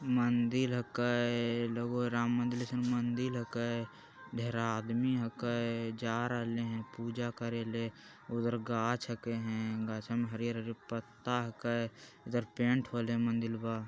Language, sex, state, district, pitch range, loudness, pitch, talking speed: Magahi, male, Bihar, Jamui, 115-120 Hz, -35 LUFS, 120 Hz, 145 wpm